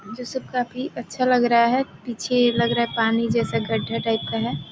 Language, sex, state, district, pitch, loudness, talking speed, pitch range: Hindi, female, Bihar, Gopalganj, 235 Hz, -22 LUFS, 215 wpm, 230-250 Hz